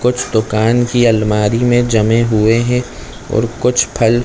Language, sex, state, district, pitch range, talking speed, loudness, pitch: Hindi, male, Chhattisgarh, Bilaspur, 110-120 Hz, 155 wpm, -14 LUFS, 115 Hz